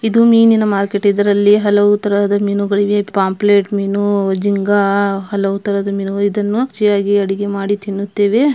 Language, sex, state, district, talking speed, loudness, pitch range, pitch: Kannada, female, Karnataka, Belgaum, 125 wpm, -14 LUFS, 200-205 Hz, 205 Hz